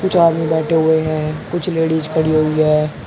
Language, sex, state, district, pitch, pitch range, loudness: Hindi, male, Uttar Pradesh, Shamli, 160 Hz, 155-165 Hz, -16 LUFS